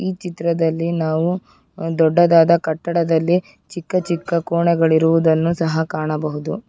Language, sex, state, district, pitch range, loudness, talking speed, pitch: Kannada, female, Karnataka, Bangalore, 160-175 Hz, -18 LUFS, 90 wpm, 165 Hz